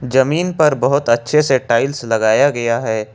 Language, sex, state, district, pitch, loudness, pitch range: Hindi, male, Jharkhand, Ranchi, 130 Hz, -15 LUFS, 115-145 Hz